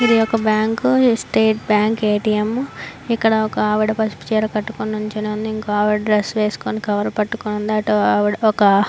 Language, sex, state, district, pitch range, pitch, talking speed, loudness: Telugu, female, Andhra Pradesh, Anantapur, 210-220 Hz, 215 Hz, 155 wpm, -18 LUFS